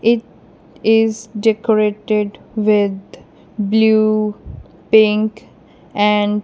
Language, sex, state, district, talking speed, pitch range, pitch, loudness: English, female, Punjab, Kapurthala, 75 wpm, 210-220 Hz, 215 Hz, -16 LUFS